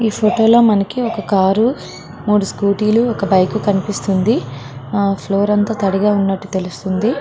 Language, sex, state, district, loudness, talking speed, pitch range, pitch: Telugu, female, Andhra Pradesh, Srikakulam, -16 LUFS, 135 wpm, 195-220 Hz, 205 Hz